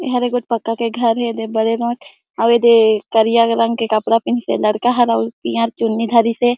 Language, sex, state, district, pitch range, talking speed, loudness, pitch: Chhattisgarhi, female, Chhattisgarh, Jashpur, 225-235 Hz, 190 wpm, -16 LUFS, 230 Hz